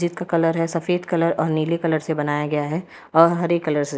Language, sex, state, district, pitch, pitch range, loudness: Hindi, female, Uttar Pradesh, Lalitpur, 165 Hz, 155-170 Hz, -21 LUFS